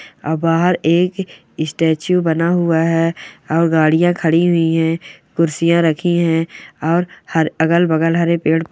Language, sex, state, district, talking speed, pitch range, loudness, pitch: Hindi, male, West Bengal, Purulia, 140 wpm, 160-170 Hz, -16 LUFS, 165 Hz